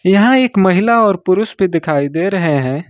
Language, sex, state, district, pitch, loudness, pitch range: Hindi, male, Jharkhand, Ranchi, 185 Hz, -13 LUFS, 165-210 Hz